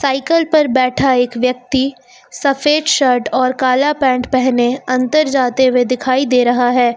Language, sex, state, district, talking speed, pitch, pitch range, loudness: Hindi, female, Uttar Pradesh, Lucknow, 155 wpm, 255 Hz, 250-275 Hz, -14 LUFS